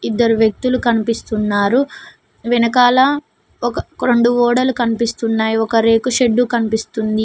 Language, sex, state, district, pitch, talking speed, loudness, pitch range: Telugu, female, Telangana, Mahabubabad, 235 Hz, 100 wpm, -16 LUFS, 225-245 Hz